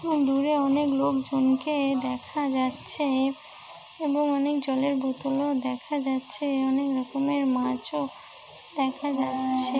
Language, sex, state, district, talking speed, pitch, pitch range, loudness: Bengali, female, West Bengal, Dakshin Dinajpur, 115 wpm, 275 Hz, 260-285 Hz, -26 LUFS